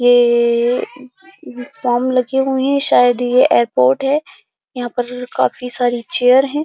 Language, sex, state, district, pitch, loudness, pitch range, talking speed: Hindi, female, Uttar Pradesh, Jyotiba Phule Nagar, 250 Hz, -15 LUFS, 245-265 Hz, 125 wpm